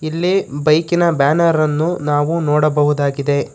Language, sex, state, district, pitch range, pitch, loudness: Kannada, male, Karnataka, Bangalore, 145-165 Hz, 155 Hz, -16 LUFS